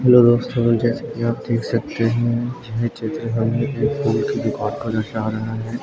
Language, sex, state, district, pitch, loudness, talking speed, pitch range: Hindi, male, Uttarakhand, Tehri Garhwal, 115 Hz, -20 LUFS, 175 wpm, 115-120 Hz